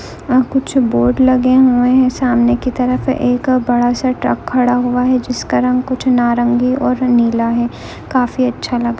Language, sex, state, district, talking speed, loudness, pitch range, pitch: Hindi, female, Andhra Pradesh, Visakhapatnam, 180 wpm, -14 LUFS, 245-255 Hz, 250 Hz